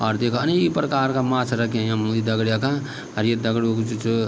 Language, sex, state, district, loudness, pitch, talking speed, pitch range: Garhwali, male, Uttarakhand, Tehri Garhwal, -22 LUFS, 115 Hz, 240 wpm, 110-130 Hz